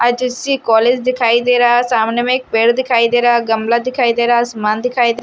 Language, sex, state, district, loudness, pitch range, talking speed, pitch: Hindi, male, Odisha, Nuapada, -14 LUFS, 235-250 Hz, 205 wpm, 240 Hz